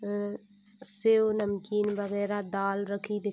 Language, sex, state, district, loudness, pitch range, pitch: Hindi, female, Bihar, Saharsa, -30 LUFS, 200-210 Hz, 205 Hz